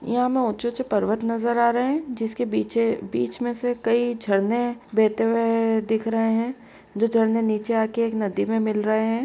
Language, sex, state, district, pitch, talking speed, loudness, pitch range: Hindi, female, Uttar Pradesh, Etah, 230 Hz, 195 wpm, -23 LUFS, 220-240 Hz